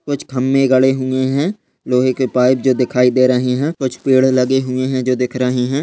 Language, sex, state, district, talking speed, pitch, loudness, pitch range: Hindi, male, Chhattisgarh, Balrampur, 225 wpm, 130 Hz, -15 LUFS, 125-130 Hz